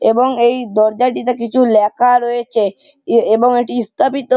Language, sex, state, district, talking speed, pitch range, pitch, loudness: Bengali, male, West Bengal, Malda, 125 wpm, 230-250 Hz, 240 Hz, -14 LUFS